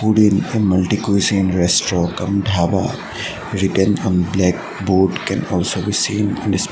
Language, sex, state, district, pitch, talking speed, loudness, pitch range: English, male, Assam, Sonitpur, 95 Hz, 170 wpm, -17 LUFS, 90-100 Hz